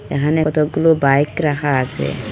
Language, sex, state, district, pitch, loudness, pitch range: Bengali, female, Assam, Hailakandi, 145 Hz, -17 LUFS, 135-155 Hz